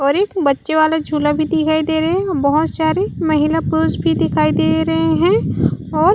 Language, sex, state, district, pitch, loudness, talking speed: Chhattisgarhi, female, Chhattisgarh, Raigarh, 305 Hz, -16 LUFS, 195 wpm